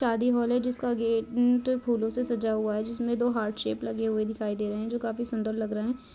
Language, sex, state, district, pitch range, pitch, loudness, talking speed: Hindi, female, Uttar Pradesh, Varanasi, 215-245 Hz, 230 Hz, -28 LUFS, 265 wpm